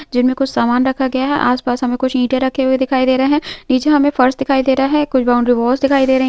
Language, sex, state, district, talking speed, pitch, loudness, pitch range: Hindi, female, Uttarakhand, Tehri Garhwal, 285 wpm, 260 Hz, -15 LUFS, 255-270 Hz